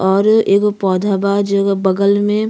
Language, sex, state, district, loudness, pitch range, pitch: Bhojpuri, female, Uttar Pradesh, Ghazipur, -14 LUFS, 195-205 Hz, 200 Hz